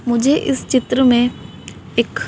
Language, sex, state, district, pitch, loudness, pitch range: Hindi, female, Madhya Pradesh, Bhopal, 255 Hz, -16 LUFS, 245-265 Hz